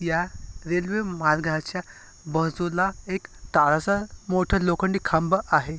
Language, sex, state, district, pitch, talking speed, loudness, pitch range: Marathi, male, Maharashtra, Aurangabad, 175 Hz, 105 wpm, -25 LUFS, 160-190 Hz